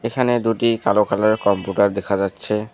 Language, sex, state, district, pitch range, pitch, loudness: Bengali, male, West Bengal, Alipurduar, 100-115 Hz, 105 Hz, -19 LUFS